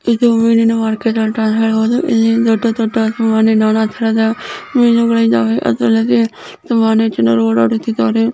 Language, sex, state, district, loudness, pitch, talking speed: Kannada, male, Karnataka, Belgaum, -13 LUFS, 225 Hz, 95 wpm